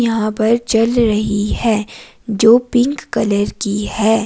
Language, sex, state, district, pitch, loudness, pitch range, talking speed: Hindi, female, Himachal Pradesh, Shimla, 220 Hz, -15 LUFS, 210-235 Hz, 140 wpm